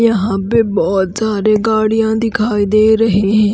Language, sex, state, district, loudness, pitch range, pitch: Hindi, female, Haryana, Rohtak, -14 LUFS, 205-220 Hz, 215 Hz